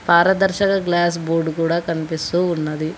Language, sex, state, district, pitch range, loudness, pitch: Telugu, female, Telangana, Hyderabad, 160-175 Hz, -19 LUFS, 170 Hz